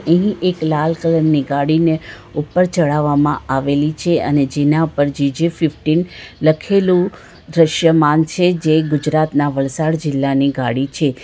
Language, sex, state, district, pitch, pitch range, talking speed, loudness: Gujarati, female, Gujarat, Valsad, 155 Hz, 145-165 Hz, 135 wpm, -16 LUFS